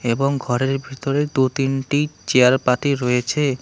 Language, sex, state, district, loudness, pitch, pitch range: Bengali, male, West Bengal, Alipurduar, -19 LUFS, 135 Hz, 125-140 Hz